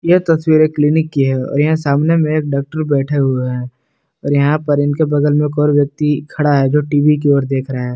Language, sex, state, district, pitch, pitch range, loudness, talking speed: Hindi, male, Jharkhand, Palamu, 145 Hz, 140-155 Hz, -14 LUFS, 250 wpm